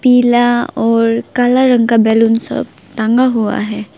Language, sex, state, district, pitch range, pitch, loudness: Hindi, female, West Bengal, Alipurduar, 225-245 Hz, 230 Hz, -12 LUFS